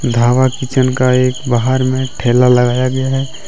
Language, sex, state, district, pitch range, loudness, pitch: Hindi, male, Jharkhand, Deoghar, 125-130 Hz, -13 LUFS, 130 Hz